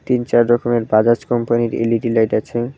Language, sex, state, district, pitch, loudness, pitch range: Bengali, male, West Bengal, Cooch Behar, 120 Hz, -16 LUFS, 115-120 Hz